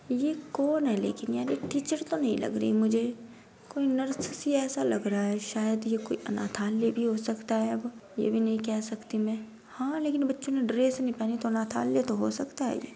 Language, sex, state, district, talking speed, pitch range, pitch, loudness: Hindi, female, Uttar Pradesh, Budaun, 220 wpm, 220-265 Hz, 230 Hz, -30 LUFS